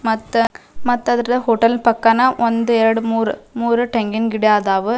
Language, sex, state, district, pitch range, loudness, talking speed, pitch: Kannada, female, Karnataka, Dharwad, 225-240 Hz, -17 LUFS, 145 wpm, 230 Hz